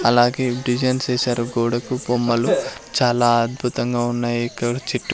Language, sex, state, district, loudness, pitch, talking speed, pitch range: Telugu, male, Andhra Pradesh, Sri Satya Sai, -20 LUFS, 120 Hz, 115 wpm, 120-125 Hz